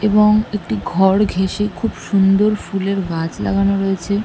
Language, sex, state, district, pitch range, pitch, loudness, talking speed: Bengali, female, West Bengal, North 24 Parganas, 190-210 Hz, 195 Hz, -17 LUFS, 140 wpm